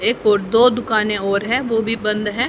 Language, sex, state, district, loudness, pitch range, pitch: Hindi, female, Haryana, Jhajjar, -17 LUFS, 210-235 Hz, 220 Hz